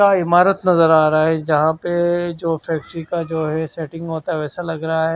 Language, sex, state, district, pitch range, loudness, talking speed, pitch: Hindi, male, Haryana, Charkhi Dadri, 160-175 Hz, -18 LUFS, 235 wpm, 165 Hz